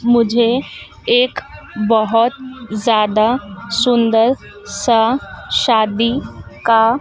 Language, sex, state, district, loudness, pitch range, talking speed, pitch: Hindi, female, Madhya Pradesh, Dhar, -15 LUFS, 220-245 Hz, 70 wpm, 230 Hz